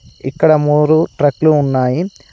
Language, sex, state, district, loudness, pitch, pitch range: Telugu, male, Telangana, Adilabad, -13 LUFS, 150 Hz, 140-160 Hz